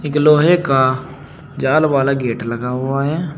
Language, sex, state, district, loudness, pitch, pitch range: Hindi, male, Uttar Pradesh, Saharanpur, -16 LUFS, 140 Hz, 130-150 Hz